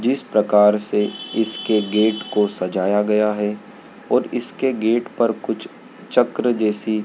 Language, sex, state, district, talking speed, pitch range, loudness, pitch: Hindi, male, Madhya Pradesh, Dhar, 135 wpm, 105-110 Hz, -20 LUFS, 105 Hz